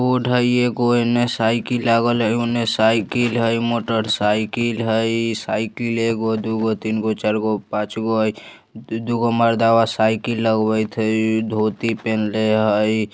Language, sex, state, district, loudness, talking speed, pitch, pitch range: Bajjika, male, Bihar, Vaishali, -19 LUFS, 150 wpm, 110 Hz, 110-115 Hz